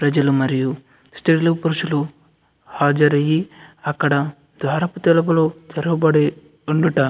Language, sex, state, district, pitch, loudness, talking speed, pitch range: Telugu, male, Andhra Pradesh, Anantapur, 150 Hz, -19 LUFS, 95 wpm, 145-165 Hz